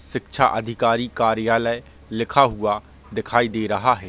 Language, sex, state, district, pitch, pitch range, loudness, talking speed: Hindi, male, Chhattisgarh, Korba, 115 Hz, 110-120 Hz, -21 LUFS, 130 wpm